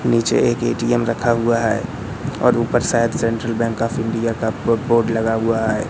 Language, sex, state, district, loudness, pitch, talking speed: Hindi, male, Madhya Pradesh, Katni, -19 LUFS, 115 Hz, 195 wpm